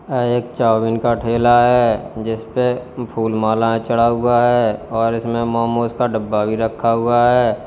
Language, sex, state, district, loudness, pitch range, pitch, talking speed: Hindi, male, Uttar Pradesh, Lalitpur, -17 LUFS, 115-120 Hz, 115 Hz, 155 wpm